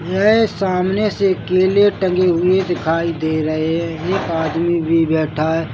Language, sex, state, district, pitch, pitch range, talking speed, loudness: Hindi, male, Chhattisgarh, Bilaspur, 170 Hz, 160-190 Hz, 155 wpm, -17 LUFS